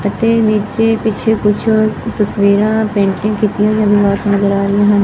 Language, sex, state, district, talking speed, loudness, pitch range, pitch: Punjabi, female, Punjab, Fazilka, 145 wpm, -13 LUFS, 200-220 Hz, 210 Hz